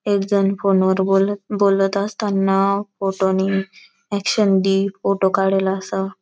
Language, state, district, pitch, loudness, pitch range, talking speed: Bhili, Maharashtra, Dhule, 195 Hz, -19 LUFS, 195-200 Hz, 135 wpm